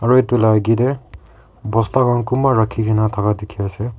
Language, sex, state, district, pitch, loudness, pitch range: Nagamese, male, Nagaland, Kohima, 110 Hz, -17 LUFS, 105-125 Hz